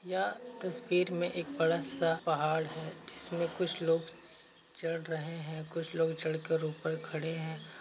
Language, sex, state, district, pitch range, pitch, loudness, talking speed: Hindi, male, Uttar Pradesh, Varanasi, 160-170 Hz, 165 Hz, -34 LUFS, 160 wpm